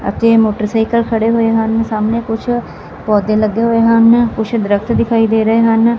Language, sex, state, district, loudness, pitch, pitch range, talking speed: Punjabi, female, Punjab, Fazilka, -13 LUFS, 225 Hz, 220-230 Hz, 170 wpm